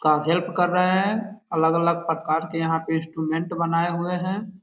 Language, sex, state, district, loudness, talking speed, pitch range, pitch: Hindi, male, Bihar, Sitamarhi, -23 LUFS, 180 wpm, 160-180 Hz, 170 Hz